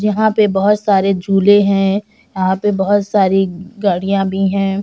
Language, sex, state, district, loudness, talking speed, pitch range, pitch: Hindi, female, Bihar, Samastipur, -14 LUFS, 175 wpm, 195-205 Hz, 195 Hz